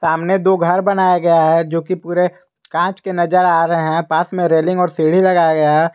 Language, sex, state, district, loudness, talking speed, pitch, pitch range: Hindi, male, Jharkhand, Garhwa, -15 LUFS, 220 wpm, 175 Hz, 165-185 Hz